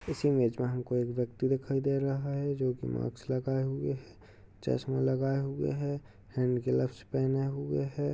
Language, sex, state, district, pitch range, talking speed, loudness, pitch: Hindi, male, Uttar Pradesh, Hamirpur, 115-135 Hz, 175 wpm, -32 LUFS, 130 Hz